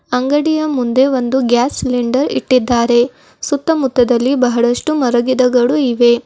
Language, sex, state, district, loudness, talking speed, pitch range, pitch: Kannada, female, Karnataka, Bidar, -14 LUFS, 95 wpm, 245-270 Hz, 250 Hz